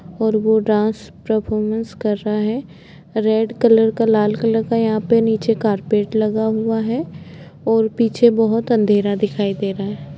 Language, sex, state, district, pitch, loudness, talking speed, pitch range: Hindi, female, Bihar, Sitamarhi, 220 Hz, -18 LUFS, 165 wpm, 205-225 Hz